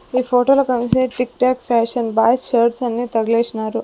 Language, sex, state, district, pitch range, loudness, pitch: Telugu, female, Andhra Pradesh, Sri Satya Sai, 230-255 Hz, -17 LUFS, 240 Hz